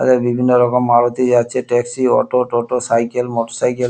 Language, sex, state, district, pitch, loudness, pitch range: Bengali, male, West Bengal, Kolkata, 120 Hz, -16 LUFS, 120-125 Hz